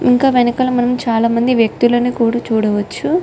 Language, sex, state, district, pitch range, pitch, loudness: Telugu, female, Telangana, Nalgonda, 230-250 Hz, 240 Hz, -15 LUFS